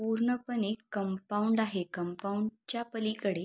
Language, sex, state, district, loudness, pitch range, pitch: Marathi, female, Maharashtra, Sindhudurg, -33 LUFS, 200-225 Hz, 215 Hz